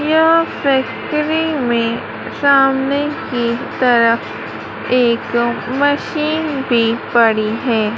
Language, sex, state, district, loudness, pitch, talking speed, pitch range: Hindi, female, Madhya Pradesh, Dhar, -16 LUFS, 250 Hz, 85 wpm, 230-285 Hz